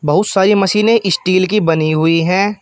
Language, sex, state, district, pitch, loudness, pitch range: Hindi, male, Uttar Pradesh, Shamli, 190 Hz, -13 LUFS, 165-205 Hz